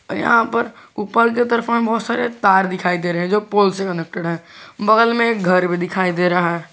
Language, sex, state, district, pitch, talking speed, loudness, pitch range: Hindi, male, Jharkhand, Garhwa, 195 Hz, 225 wpm, -17 LUFS, 180-230 Hz